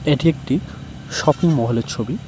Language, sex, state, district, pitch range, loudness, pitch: Bengali, male, West Bengal, Cooch Behar, 125-165 Hz, -20 LUFS, 145 Hz